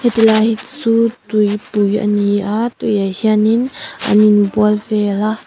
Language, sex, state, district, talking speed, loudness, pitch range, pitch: Mizo, female, Mizoram, Aizawl, 120 wpm, -15 LUFS, 210-225 Hz, 215 Hz